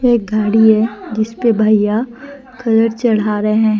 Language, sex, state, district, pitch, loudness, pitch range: Hindi, female, Jharkhand, Deoghar, 220 Hz, -14 LUFS, 215-235 Hz